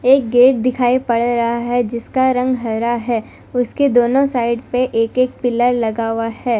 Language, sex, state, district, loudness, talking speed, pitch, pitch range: Hindi, female, Punjab, Fazilka, -16 LUFS, 180 wpm, 245 Hz, 235-255 Hz